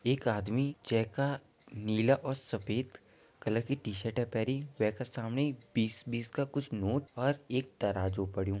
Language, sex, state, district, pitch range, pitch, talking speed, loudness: Garhwali, male, Uttarakhand, Tehri Garhwal, 110-135 Hz, 120 Hz, 160 wpm, -34 LUFS